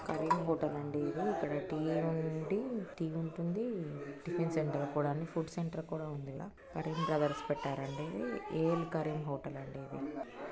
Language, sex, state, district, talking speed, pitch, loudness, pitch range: Telugu, female, Telangana, Nalgonda, 120 wpm, 155 Hz, -37 LUFS, 145-165 Hz